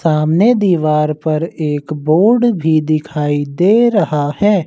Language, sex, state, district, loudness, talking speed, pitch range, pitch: Hindi, male, Uttar Pradesh, Lucknow, -14 LUFS, 130 wpm, 150-200 Hz, 160 Hz